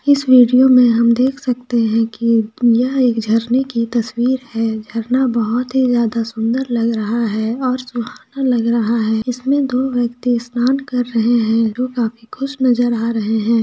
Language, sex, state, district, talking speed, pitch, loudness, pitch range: Hindi, female, Jharkhand, Sahebganj, 180 wpm, 240 Hz, -16 LUFS, 230-255 Hz